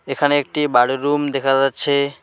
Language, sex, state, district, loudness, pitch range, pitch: Bengali, male, West Bengal, Alipurduar, -18 LUFS, 135-145 Hz, 140 Hz